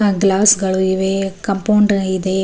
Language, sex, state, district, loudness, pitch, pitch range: Kannada, female, Karnataka, Raichur, -15 LUFS, 195 Hz, 190-200 Hz